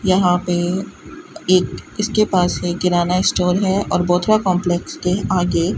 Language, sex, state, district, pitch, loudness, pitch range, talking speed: Hindi, female, Rajasthan, Bikaner, 180 Hz, -18 LUFS, 175-185 Hz, 145 wpm